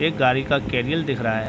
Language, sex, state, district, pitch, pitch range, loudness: Hindi, male, Bihar, Gopalganj, 130 Hz, 120-145 Hz, -22 LUFS